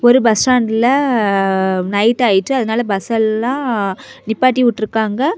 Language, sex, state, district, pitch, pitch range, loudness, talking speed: Tamil, female, Tamil Nadu, Kanyakumari, 225 Hz, 205-255 Hz, -15 LUFS, 100 wpm